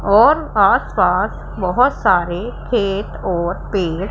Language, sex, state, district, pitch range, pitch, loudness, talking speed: Hindi, female, Punjab, Pathankot, 180-210 Hz, 195 Hz, -17 LUFS, 115 wpm